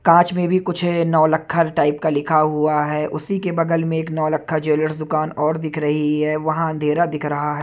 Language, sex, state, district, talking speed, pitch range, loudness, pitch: Hindi, male, Chhattisgarh, Raipur, 210 wpm, 150-165 Hz, -19 LUFS, 155 Hz